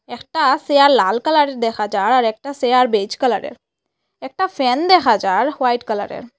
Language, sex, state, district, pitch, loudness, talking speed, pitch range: Bengali, female, Assam, Hailakandi, 255 Hz, -16 LUFS, 160 wpm, 235-285 Hz